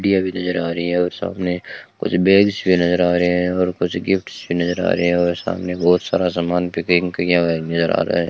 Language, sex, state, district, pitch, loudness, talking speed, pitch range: Hindi, male, Rajasthan, Bikaner, 90 Hz, -18 LUFS, 240 wpm, 85-90 Hz